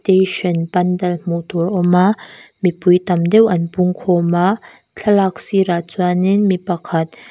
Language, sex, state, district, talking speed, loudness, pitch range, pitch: Mizo, female, Mizoram, Aizawl, 125 wpm, -16 LUFS, 175-190 Hz, 180 Hz